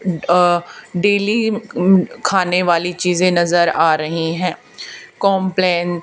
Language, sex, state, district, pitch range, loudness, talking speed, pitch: Hindi, female, Haryana, Charkhi Dadri, 175-195 Hz, -16 LUFS, 110 wpm, 180 Hz